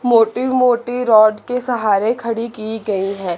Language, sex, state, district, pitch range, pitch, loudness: Hindi, female, Chandigarh, Chandigarh, 215-245 Hz, 230 Hz, -16 LUFS